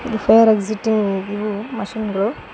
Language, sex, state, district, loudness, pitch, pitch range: Kannada, female, Karnataka, Koppal, -18 LUFS, 215 Hz, 205-220 Hz